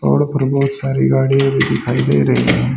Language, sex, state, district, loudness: Hindi, male, Haryana, Charkhi Dadri, -15 LUFS